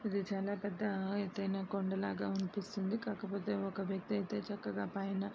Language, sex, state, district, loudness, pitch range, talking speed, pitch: Telugu, female, Andhra Pradesh, Srikakulam, -39 LUFS, 195-205 Hz, 155 wpm, 200 Hz